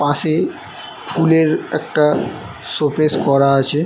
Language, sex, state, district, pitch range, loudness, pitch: Bengali, male, West Bengal, North 24 Parganas, 145-155 Hz, -16 LUFS, 150 Hz